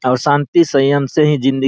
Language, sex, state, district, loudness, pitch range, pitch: Maithili, male, Bihar, Araria, -14 LUFS, 135-150 Hz, 140 Hz